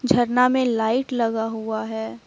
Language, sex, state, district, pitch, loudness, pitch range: Hindi, female, Jharkhand, Deoghar, 230 Hz, -22 LUFS, 220-250 Hz